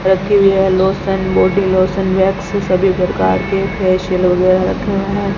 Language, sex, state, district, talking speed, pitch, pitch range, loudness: Hindi, female, Rajasthan, Bikaner, 155 wpm, 190 Hz, 185-195 Hz, -14 LUFS